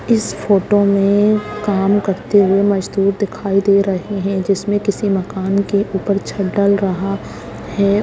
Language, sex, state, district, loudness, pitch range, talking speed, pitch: Hindi, female, Bihar, Lakhisarai, -16 LUFS, 195-205 Hz, 155 wpm, 200 Hz